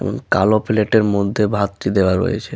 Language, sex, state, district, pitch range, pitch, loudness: Bengali, male, West Bengal, Malda, 100-110 Hz, 105 Hz, -17 LUFS